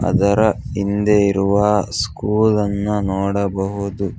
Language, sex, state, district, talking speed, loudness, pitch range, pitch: Kannada, male, Karnataka, Bangalore, 85 wpm, -18 LUFS, 100-105 Hz, 100 Hz